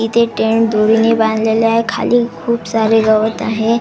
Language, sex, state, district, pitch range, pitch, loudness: Marathi, female, Maharashtra, Washim, 220-230 Hz, 225 Hz, -14 LUFS